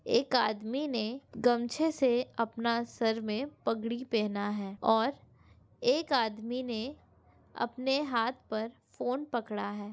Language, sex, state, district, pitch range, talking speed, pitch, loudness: Hindi, female, Andhra Pradesh, Anantapur, 220-255 Hz, 125 wpm, 235 Hz, -32 LUFS